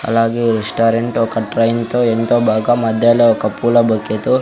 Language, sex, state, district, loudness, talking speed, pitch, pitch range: Telugu, male, Andhra Pradesh, Sri Satya Sai, -15 LUFS, 150 wpm, 115 Hz, 110-120 Hz